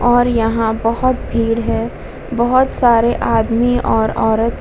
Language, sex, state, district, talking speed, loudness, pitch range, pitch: Hindi, female, Bihar, Vaishali, 130 wpm, -15 LUFS, 225-245 Hz, 230 Hz